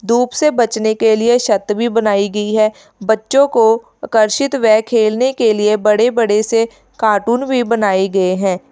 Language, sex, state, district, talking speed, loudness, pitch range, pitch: Hindi, female, Uttar Pradesh, Lalitpur, 170 wpm, -14 LUFS, 210-240 Hz, 225 Hz